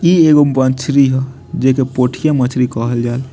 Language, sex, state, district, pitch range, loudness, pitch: Bhojpuri, male, Bihar, Muzaffarpur, 125-140 Hz, -14 LUFS, 130 Hz